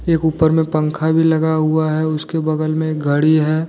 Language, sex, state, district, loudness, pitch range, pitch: Hindi, male, Jharkhand, Deoghar, -16 LUFS, 155-160 Hz, 155 Hz